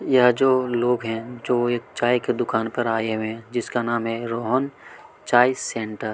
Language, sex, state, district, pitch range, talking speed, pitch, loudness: Hindi, male, Chhattisgarh, Kabirdham, 115-125 Hz, 185 wpm, 120 Hz, -22 LUFS